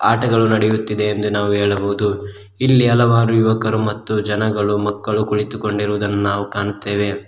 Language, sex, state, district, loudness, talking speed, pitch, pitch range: Kannada, male, Karnataka, Koppal, -17 LUFS, 115 wpm, 105 Hz, 105-110 Hz